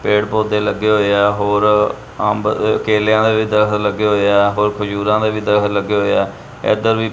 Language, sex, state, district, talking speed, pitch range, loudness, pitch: Punjabi, male, Punjab, Kapurthala, 195 wpm, 105-110 Hz, -15 LUFS, 105 Hz